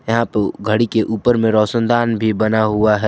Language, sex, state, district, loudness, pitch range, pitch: Hindi, male, Jharkhand, Garhwa, -16 LUFS, 110-115 Hz, 110 Hz